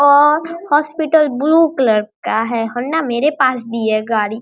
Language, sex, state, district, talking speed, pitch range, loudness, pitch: Hindi, male, Bihar, Araria, 165 wpm, 230-300 Hz, -15 LUFS, 265 Hz